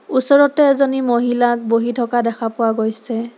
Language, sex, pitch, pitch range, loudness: Assamese, female, 240 Hz, 230-265 Hz, -16 LUFS